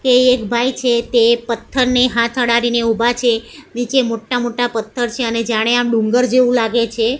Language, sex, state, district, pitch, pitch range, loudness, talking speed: Gujarati, female, Gujarat, Gandhinagar, 240 Hz, 230-250 Hz, -16 LUFS, 190 wpm